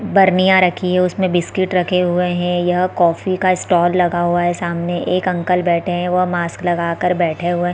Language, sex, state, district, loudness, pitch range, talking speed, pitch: Hindi, female, Chhattisgarh, Bilaspur, -16 LUFS, 175-180 Hz, 200 wpm, 180 Hz